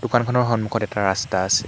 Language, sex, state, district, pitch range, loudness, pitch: Assamese, male, Assam, Hailakandi, 100-120 Hz, -21 LUFS, 110 Hz